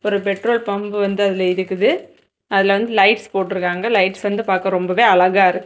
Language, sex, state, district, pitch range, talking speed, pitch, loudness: Tamil, female, Tamil Nadu, Kanyakumari, 185-205 Hz, 170 wpm, 195 Hz, -17 LUFS